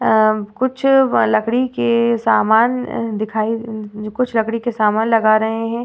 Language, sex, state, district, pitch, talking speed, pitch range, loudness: Hindi, female, Uttar Pradesh, Varanasi, 225 Hz, 165 wpm, 215-240 Hz, -17 LUFS